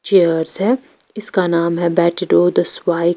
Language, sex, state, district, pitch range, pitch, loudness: Hindi, female, Bihar, Patna, 170-190 Hz, 175 Hz, -16 LUFS